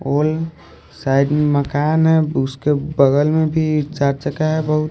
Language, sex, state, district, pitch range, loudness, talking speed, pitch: Hindi, male, Haryana, Rohtak, 140-155 Hz, -17 LUFS, 170 wpm, 150 Hz